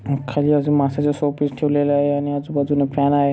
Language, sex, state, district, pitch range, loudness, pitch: Marathi, male, Maharashtra, Solapur, 140-145 Hz, -19 LUFS, 145 Hz